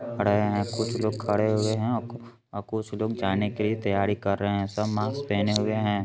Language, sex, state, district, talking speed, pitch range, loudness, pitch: Hindi, male, Bihar, Begusarai, 220 wpm, 100-110 Hz, -26 LUFS, 105 Hz